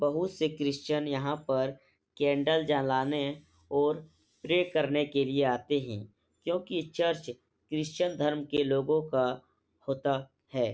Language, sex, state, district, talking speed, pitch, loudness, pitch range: Hindi, male, Uttar Pradesh, Etah, 130 wpm, 145 Hz, -30 LUFS, 135-155 Hz